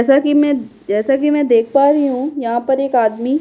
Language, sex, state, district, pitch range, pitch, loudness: Hindi, female, Bihar, Kishanganj, 235-285 Hz, 270 Hz, -15 LUFS